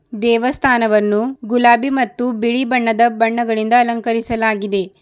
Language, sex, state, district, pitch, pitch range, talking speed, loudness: Kannada, female, Karnataka, Bidar, 235 Hz, 225-245 Hz, 85 wpm, -15 LUFS